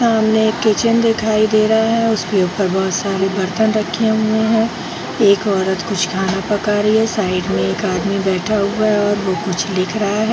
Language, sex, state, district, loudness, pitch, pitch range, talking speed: Hindi, female, Bihar, Jahanabad, -16 LUFS, 205 Hz, 190-220 Hz, 205 wpm